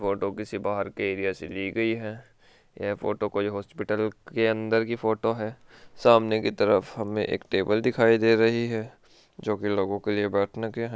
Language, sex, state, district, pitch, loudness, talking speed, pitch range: Hindi, male, Rajasthan, Churu, 110 Hz, -26 LUFS, 195 wpm, 100-115 Hz